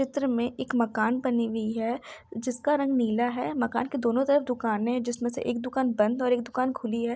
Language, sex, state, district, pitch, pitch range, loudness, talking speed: Hindi, female, Jharkhand, Sahebganj, 245 Hz, 235-260 Hz, -27 LUFS, 235 wpm